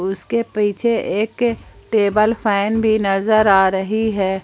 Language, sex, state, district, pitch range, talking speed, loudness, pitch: Hindi, female, Jharkhand, Palamu, 195-220 Hz, 135 wpm, -17 LUFS, 210 Hz